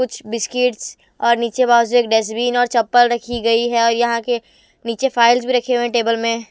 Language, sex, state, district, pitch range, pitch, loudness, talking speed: Hindi, female, Himachal Pradesh, Shimla, 230-245 Hz, 235 Hz, -17 LUFS, 210 wpm